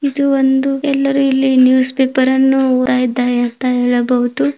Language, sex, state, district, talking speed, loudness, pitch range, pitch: Kannada, female, Karnataka, Mysore, 145 wpm, -14 LUFS, 250-270 Hz, 260 Hz